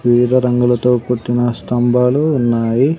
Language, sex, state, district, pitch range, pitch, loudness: Telugu, male, Andhra Pradesh, Sri Satya Sai, 120-125 Hz, 120 Hz, -15 LUFS